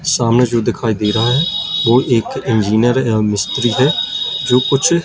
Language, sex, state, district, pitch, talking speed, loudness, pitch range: Hindi, male, Madhya Pradesh, Katni, 120 Hz, 165 wpm, -14 LUFS, 115-135 Hz